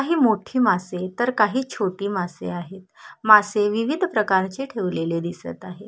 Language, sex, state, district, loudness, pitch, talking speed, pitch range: Marathi, female, Maharashtra, Solapur, -22 LUFS, 205 Hz, 145 wpm, 185-235 Hz